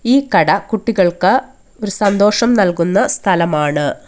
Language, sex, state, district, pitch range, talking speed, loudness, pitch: Malayalam, female, Kerala, Kollam, 175-230 Hz, 105 wpm, -14 LUFS, 200 Hz